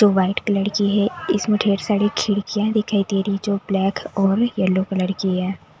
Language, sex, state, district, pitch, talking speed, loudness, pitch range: Hindi, female, Delhi, New Delhi, 200 Hz, 195 wpm, -20 LUFS, 195-210 Hz